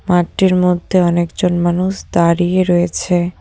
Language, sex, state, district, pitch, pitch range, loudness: Bengali, female, West Bengal, Cooch Behar, 175 Hz, 175-185 Hz, -15 LUFS